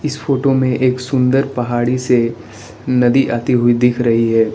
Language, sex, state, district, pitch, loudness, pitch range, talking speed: Hindi, male, Arunachal Pradesh, Lower Dibang Valley, 125 Hz, -15 LUFS, 120-130 Hz, 170 wpm